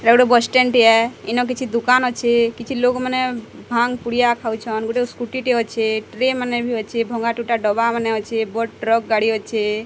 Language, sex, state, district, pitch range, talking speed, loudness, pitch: Odia, female, Odisha, Sambalpur, 225-245 Hz, 195 wpm, -19 LUFS, 235 Hz